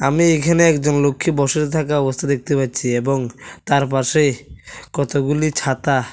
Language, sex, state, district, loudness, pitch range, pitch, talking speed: Bengali, male, Tripura, West Tripura, -18 LUFS, 135-150 Hz, 140 Hz, 135 wpm